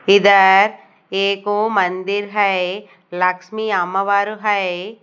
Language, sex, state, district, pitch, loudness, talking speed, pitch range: Hindi, female, Odisha, Nuapada, 200 Hz, -17 LUFS, 85 wpm, 190-205 Hz